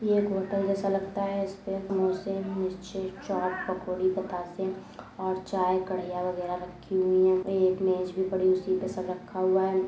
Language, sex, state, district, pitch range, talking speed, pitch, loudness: Hindi, female, Uttar Pradesh, Deoria, 185-195 Hz, 190 wpm, 190 Hz, -29 LUFS